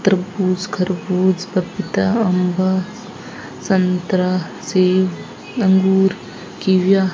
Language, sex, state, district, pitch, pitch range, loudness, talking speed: Hindi, female, Rajasthan, Bikaner, 185 Hz, 185-195 Hz, -18 LUFS, 75 wpm